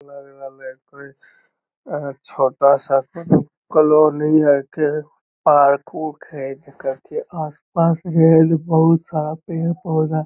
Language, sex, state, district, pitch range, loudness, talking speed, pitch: Magahi, male, Bihar, Lakhisarai, 140-165 Hz, -17 LUFS, 95 wpm, 155 Hz